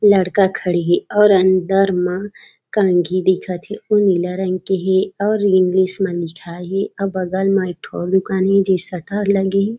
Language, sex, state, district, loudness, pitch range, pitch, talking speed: Chhattisgarhi, female, Chhattisgarh, Raigarh, -17 LUFS, 185-195 Hz, 190 Hz, 185 wpm